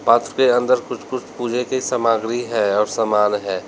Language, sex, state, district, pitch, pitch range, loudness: Hindi, male, Uttar Pradesh, Lalitpur, 120 Hz, 110-125 Hz, -19 LUFS